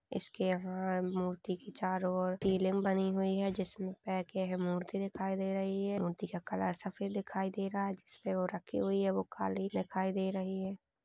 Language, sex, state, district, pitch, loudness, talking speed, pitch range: Hindi, female, Bihar, Purnia, 190 Hz, -36 LUFS, 200 wpm, 185-195 Hz